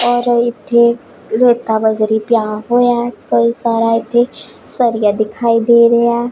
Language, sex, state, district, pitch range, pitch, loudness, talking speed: Punjabi, female, Punjab, Pathankot, 225-240 Hz, 235 Hz, -13 LUFS, 140 wpm